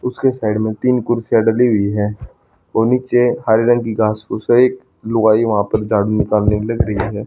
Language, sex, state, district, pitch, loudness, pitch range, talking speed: Hindi, male, Haryana, Charkhi Dadri, 110 Hz, -16 LUFS, 105-120 Hz, 230 wpm